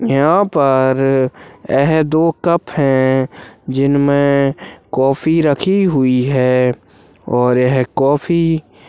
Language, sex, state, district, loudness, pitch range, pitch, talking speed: Hindi, male, Uttarakhand, Uttarkashi, -14 LUFS, 130-155 Hz, 135 Hz, 100 wpm